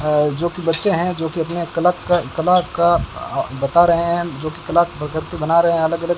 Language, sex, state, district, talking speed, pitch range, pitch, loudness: Hindi, male, Rajasthan, Bikaner, 225 wpm, 160-175 Hz, 170 Hz, -18 LUFS